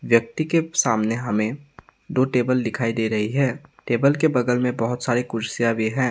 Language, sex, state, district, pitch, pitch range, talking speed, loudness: Hindi, male, Assam, Sonitpur, 125 Hz, 115-135 Hz, 185 wpm, -22 LUFS